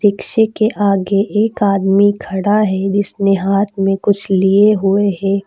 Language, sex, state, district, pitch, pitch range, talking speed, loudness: Hindi, female, Uttar Pradesh, Lucknow, 200 Hz, 195-205 Hz, 155 wpm, -14 LUFS